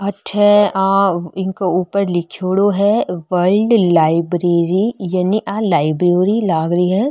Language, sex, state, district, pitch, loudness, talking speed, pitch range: Marwari, female, Rajasthan, Nagaur, 190 Hz, -15 LUFS, 120 wpm, 175-200 Hz